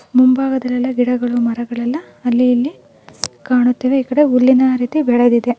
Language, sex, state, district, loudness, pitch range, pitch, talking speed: Kannada, female, Karnataka, Mysore, -15 LUFS, 245-260 Hz, 250 Hz, 130 wpm